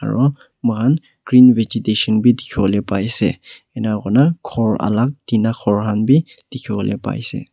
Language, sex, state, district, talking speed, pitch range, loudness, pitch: Nagamese, male, Nagaland, Kohima, 150 wpm, 110-130 Hz, -17 LUFS, 115 Hz